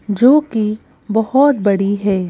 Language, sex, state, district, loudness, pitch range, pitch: Hindi, female, Madhya Pradesh, Bhopal, -15 LUFS, 200-255 Hz, 215 Hz